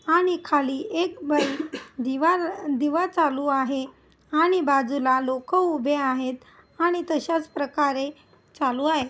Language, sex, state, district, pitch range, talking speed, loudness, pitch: Marathi, female, Maharashtra, Aurangabad, 270-335 Hz, 110 wpm, -24 LUFS, 295 Hz